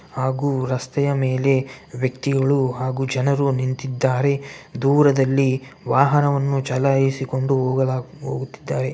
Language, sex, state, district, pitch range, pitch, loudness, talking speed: Kannada, male, Karnataka, Bellary, 130-140 Hz, 135 Hz, -20 LUFS, 80 wpm